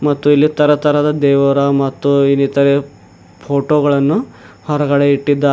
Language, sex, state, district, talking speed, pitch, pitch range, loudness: Kannada, male, Karnataka, Bidar, 100 wpm, 140 Hz, 140-145 Hz, -13 LUFS